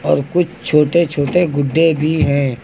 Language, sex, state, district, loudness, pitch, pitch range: Hindi, male, Uttar Pradesh, Lucknow, -15 LUFS, 155 Hz, 145-165 Hz